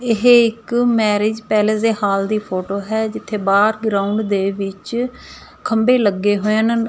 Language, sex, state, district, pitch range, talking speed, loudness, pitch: Punjabi, female, Punjab, Fazilka, 205-225 Hz, 155 wpm, -17 LUFS, 215 Hz